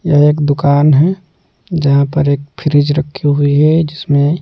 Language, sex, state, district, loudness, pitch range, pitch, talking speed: Hindi, male, Delhi, New Delhi, -12 LUFS, 145-155 Hz, 145 Hz, 165 wpm